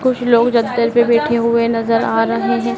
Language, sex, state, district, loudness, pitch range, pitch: Hindi, female, Madhya Pradesh, Dhar, -15 LUFS, 230-245 Hz, 235 Hz